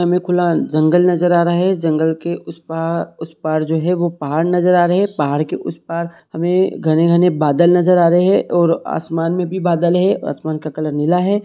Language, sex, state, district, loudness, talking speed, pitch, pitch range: Hindi, male, Jharkhand, Sahebganj, -16 LUFS, 225 wpm, 170 Hz, 160-180 Hz